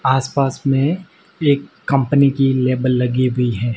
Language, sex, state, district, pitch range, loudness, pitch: Hindi, male, Rajasthan, Barmer, 130-140 Hz, -17 LUFS, 135 Hz